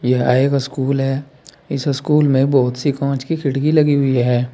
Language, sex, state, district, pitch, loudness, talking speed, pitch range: Hindi, male, Uttar Pradesh, Saharanpur, 140 Hz, -17 LUFS, 200 wpm, 130-145 Hz